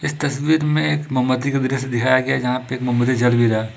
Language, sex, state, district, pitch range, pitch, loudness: Hindi, male, Jharkhand, Ranchi, 125-145 Hz, 130 Hz, -19 LUFS